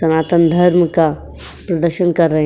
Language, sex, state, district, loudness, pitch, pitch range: Hindi, female, Uttar Pradesh, Jyotiba Phule Nagar, -14 LUFS, 165 Hz, 155-175 Hz